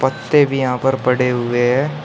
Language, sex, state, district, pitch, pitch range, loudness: Hindi, male, Uttar Pradesh, Shamli, 130 Hz, 125-135 Hz, -16 LUFS